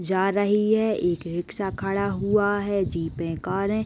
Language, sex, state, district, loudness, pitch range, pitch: Hindi, female, Uttar Pradesh, Deoria, -24 LUFS, 175-205 Hz, 195 Hz